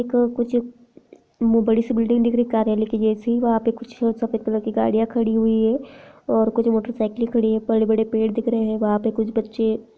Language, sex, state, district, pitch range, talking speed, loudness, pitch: Hindi, female, Jharkhand, Jamtara, 220-235 Hz, 205 wpm, -21 LUFS, 225 Hz